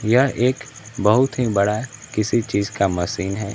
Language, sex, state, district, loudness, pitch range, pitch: Hindi, male, Bihar, Kaimur, -20 LUFS, 100-125 Hz, 110 Hz